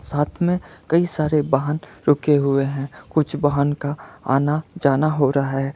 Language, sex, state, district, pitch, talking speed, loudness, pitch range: Hindi, male, Karnataka, Bangalore, 145 Hz, 165 wpm, -20 LUFS, 140-155 Hz